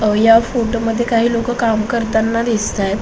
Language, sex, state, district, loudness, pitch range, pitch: Marathi, female, Maharashtra, Solapur, -16 LUFS, 220-235 Hz, 230 Hz